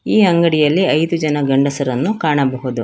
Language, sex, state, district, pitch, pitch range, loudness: Kannada, female, Karnataka, Bangalore, 150 Hz, 135-170 Hz, -15 LUFS